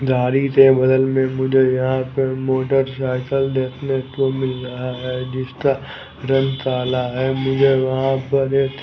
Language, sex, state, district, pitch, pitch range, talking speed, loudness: Hindi, male, Chhattisgarh, Raipur, 130 Hz, 130-135 Hz, 150 wpm, -19 LUFS